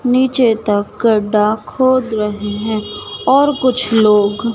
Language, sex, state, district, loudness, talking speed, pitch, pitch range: Hindi, female, Madhya Pradesh, Dhar, -14 LUFS, 120 wpm, 220 Hz, 210-255 Hz